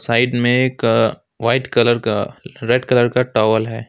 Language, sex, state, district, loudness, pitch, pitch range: Hindi, male, West Bengal, Alipurduar, -17 LUFS, 120 Hz, 115-125 Hz